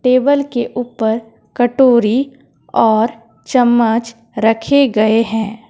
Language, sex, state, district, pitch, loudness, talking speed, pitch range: Hindi, female, Jharkhand, Deoghar, 235 Hz, -14 LUFS, 95 wpm, 225-250 Hz